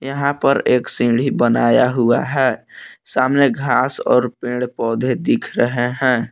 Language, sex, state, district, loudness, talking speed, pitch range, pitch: Hindi, male, Jharkhand, Palamu, -17 LUFS, 145 wpm, 120-135 Hz, 125 Hz